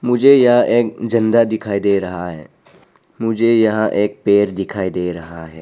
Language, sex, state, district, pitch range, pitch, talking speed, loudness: Hindi, male, Arunachal Pradesh, Papum Pare, 90-115 Hz, 105 Hz, 170 wpm, -16 LUFS